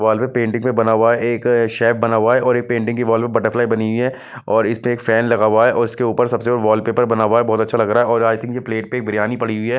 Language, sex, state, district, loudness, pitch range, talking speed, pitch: Hindi, male, Chandigarh, Chandigarh, -17 LUFS, 110-120 Hz, 330 wpm, 115 Hz